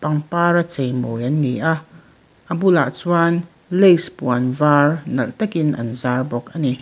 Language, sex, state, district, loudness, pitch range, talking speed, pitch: Mizo, female, Mizoram, Aizawl, -18 LUFS, 125-170 Hz, 160 wpm, 150 Hz